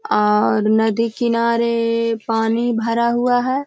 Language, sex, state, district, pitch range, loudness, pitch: Hindi, female, Bihar, Jahanabad, 225-235 Hz, -18 LUFS, 230 Hz